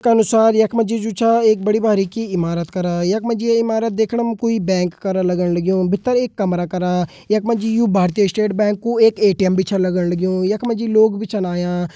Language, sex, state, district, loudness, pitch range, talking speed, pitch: Hindi, male, Uttarakhand, Tehri Garhwal, -17 LUFS, 185-225 Hz, 220 wpm, 210 Hz